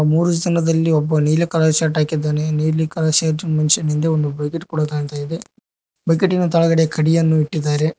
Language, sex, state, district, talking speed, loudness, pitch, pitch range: Kannada, male, Karnataka, Koppal, 160 wpm, -18 LUFS, 155 Hz, 155-165 Hz